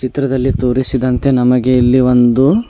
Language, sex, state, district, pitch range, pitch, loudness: Kannada, male, Karnataka, Bidar, 125-130 Hz, 130 Hz, -12 LUFS